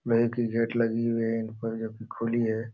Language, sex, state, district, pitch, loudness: Hindi, male, Uttar Pradesh, Jalaun, 115 Hz, -28 LUFS